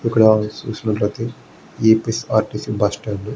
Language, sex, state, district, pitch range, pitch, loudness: Telugu, male, Andhra Pradesh, Guntur, 105-115 Hz, 110 Hz, -19 LUFS